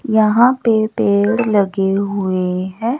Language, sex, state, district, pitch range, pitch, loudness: Hindi, male, Odisha, Nuapada, 195-225 Hz, 210 Hz, -16 LUFS